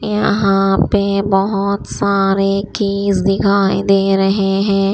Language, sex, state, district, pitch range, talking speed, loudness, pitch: Hindi, female, Maharashtra, Washim, 195-200 Hz, 110 wpm, -15 LUFS, 195 Hz